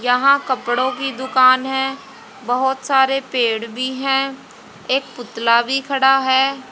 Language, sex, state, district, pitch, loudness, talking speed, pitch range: Hindi, female, Haryana, Jhajjar, 265 Hz, -17 LUFS, 135 wpm, 250-270 Hz